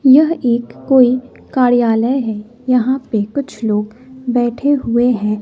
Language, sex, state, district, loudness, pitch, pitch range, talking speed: Hindi, female, Bihar, West Champaran, -15 LUFS, 245 Hz, 230-260 Hz, 135 wpm